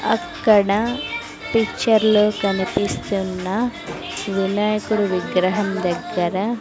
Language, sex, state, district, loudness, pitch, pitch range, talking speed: Telugu, female, Andhra Pradesh, Sri Satya Sai, -20 LUFS, 200 Hz, 185-215 Hz, 65 wpm